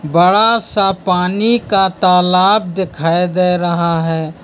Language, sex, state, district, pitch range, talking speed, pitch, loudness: Hindi, male, Uttar Pradesh, Lucknow, 170-195 Hz, 120 wpm, 180 Hz, -13 LUFS